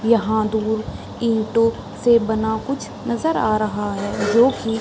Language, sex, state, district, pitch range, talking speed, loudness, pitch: Hindi, female, Bihar, Supaul, 220-235 Hz, 160 wpm, -20 LUFS, 220 Hz